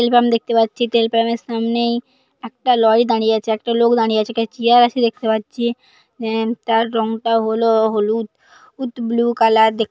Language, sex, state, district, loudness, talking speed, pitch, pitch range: Bengali, female, West Bengal, Paschim Medinipur, -17 LUFS, 175 wpm, 230 Hz, 225-235 Hz